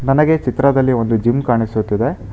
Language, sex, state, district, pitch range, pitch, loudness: Kannada, male, Karnataka, Bangalore, 115-135 Hz, 120 Hz, -16 LUFS